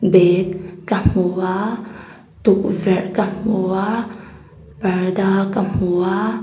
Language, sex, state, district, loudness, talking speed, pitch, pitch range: Mizo, female, Mizoram, Aizawl, -18 LUFS, 110 wpm, 195 Hz, 185-205 Hz